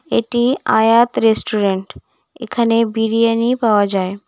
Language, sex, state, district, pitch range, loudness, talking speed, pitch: Bengali, female, West Bengal, Cooch Behar, 215-235 Hz, -16 LUFS, 100 wpm, 230 Hz